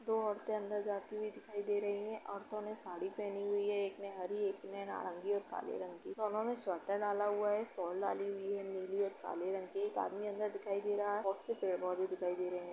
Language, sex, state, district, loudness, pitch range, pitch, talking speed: Hindi, female, Uttar Pradesh, Etah, -39 LUFS, 195-210 Hz, 205 Hz, 265 wpm